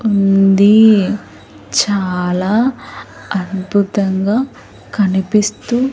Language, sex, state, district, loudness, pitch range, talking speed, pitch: Telugu, female, Andhra Pradesh, Sri Satya Sai, -14 LUFS, 185-210 Hz, 40 wpm, 200 Hz